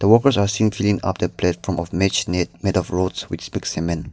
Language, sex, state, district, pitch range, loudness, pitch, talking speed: English, male, Nagaland, Dimapur, 90-100 Hz, -21 LUFS, 95 Hz, 220 wpm